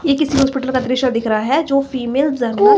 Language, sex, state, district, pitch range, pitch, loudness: Hindi, female, Himachal Pradesh, Shimla, 240-275 Hz, 260 Hz, -17 LUFS